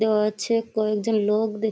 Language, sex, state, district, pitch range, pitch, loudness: Bengali, female, West Bengal, Kolkata, 210-220 Hz, 215 Hz, -23 LUFS